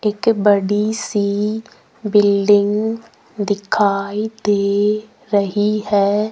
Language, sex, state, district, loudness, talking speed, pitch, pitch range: Hindi, female, Rajasthan, Jaipur, -17 LUFS, 75 wpm, 205 Hz, 205-215 Hz